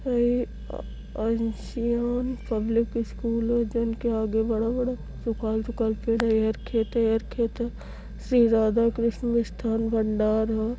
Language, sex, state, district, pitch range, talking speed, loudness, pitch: Hindi, female, Uttar Pradesh, Varanasi, 225-235 Hz, 95 wpm, -26 LUFS, 230 Hz